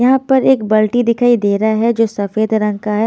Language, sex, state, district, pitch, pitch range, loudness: Hindi, female, Haryana, Jhajjar, 220 Hz, 215-245 Hz, -14 LUFS